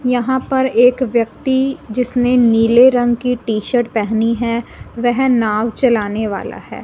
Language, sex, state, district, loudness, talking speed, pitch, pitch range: Hindi, female, Punjab, Fazilka, -15 LUFS, 150 wpm, 240 Hz, 225-250 Hz